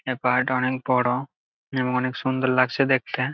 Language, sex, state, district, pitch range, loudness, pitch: Bengali, male, West Bengal, Jalpaiguri, 125-130 Hz, -23 LUFS, 130 Hz